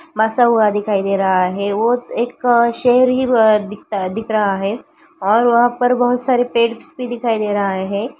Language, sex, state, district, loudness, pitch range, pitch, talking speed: Hindi, female, Uttarakhand, Uttarkashi, -16 LUFS, 205-245 Hz, 225 Hz, 205 wpm